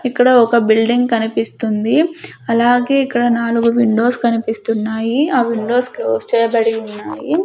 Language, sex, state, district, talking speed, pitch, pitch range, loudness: Telugu, female, Andhra Pradesh, Sri Satya Sai, 115 wpm, 235 Hz, 225-245 Hz, -15 LUFS